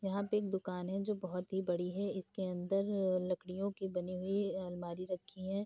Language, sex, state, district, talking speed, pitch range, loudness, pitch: Hindi, female, Uttar Pradesh, Budaun, 225 wpm, 180-195 Hz, -38 LUFS, 190 Hz